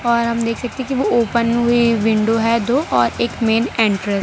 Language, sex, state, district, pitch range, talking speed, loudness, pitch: Hindi, female, Gujarat, Valsad, 225-240 Hz, 225 wpm, -17 LUFS, 230 Hz